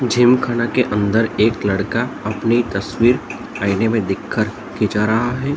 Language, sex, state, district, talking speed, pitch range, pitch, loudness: Hindi, male, Bihar, Darbhanga, 170 wpm, 105-120 Hz, 115 Hz, -18 LUFS